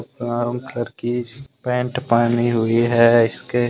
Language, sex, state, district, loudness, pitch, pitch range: Hindi, male, Jharkhand, Deoghar, -19 LUFS, 120 Hz, 120-125 Hz